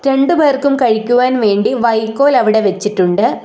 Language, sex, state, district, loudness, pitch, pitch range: Malayalam, female, Kerala, Kollam, -13 LUFS, 235 Hz, 215-270 Hz